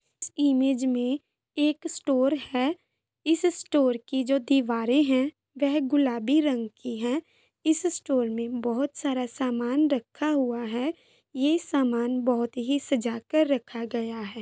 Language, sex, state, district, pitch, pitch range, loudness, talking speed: Hindi, female, Jharkhand, Sahebganj, 270 Hz, 240-295 Hz, -26 LUFS, 135 wpm